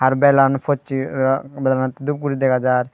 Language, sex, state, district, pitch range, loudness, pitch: Chakma, female, Tripura, Dhalai, 130-140 Hz, -18 LUFS, 135 Hz